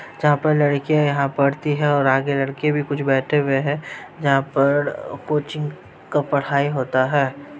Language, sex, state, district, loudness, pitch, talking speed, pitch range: Hindi, male, Uttar Pradesh, Ghazipur, -20 LUFS, 145 Hz, 165 wpm, 140-150 Hz